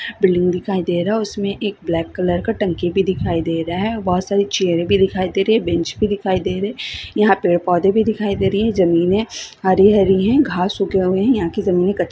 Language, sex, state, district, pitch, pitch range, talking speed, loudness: Hindi, female, Bihar, Saran, 190 Hz, 180-205 Hz, 235 wpm, -17 LUFS